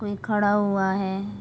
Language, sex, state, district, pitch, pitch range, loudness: Hindi, female, Chhattisgarh, Raigarh, 205 Hz, 195-205 Hz, -24 LUFS